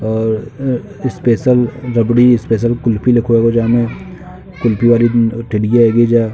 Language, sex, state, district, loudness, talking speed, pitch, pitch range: Hindi, male, Uttar Pradesh, Jalaun, -13 LUFS, 65 wpm, 115 Hz, 115-120 Hz